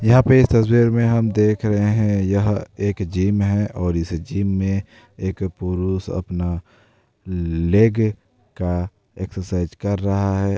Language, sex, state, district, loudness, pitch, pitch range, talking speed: Hindi, male, Bihar, Darbhanga, -20 LUFS, 100 Hz, 95-110 Hz, 150 wpm